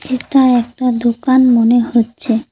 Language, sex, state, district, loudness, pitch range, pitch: Bengali, female, West Bengal, Cooch Behar, -13 LUFS, 235-260 Hz, 245 Hz